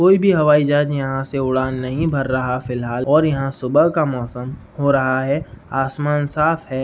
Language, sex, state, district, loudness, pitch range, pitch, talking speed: Hindi, male, Uttar Pradesh, Gorakhpur, -18 LUFS, 130-150 Hz, 135 Hz, 195 wpm